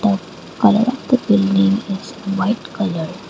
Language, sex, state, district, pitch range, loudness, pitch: English, female, Assam, Kamrup Metropolitan, 195-220 Hz, -18 LUFS, 200 Hz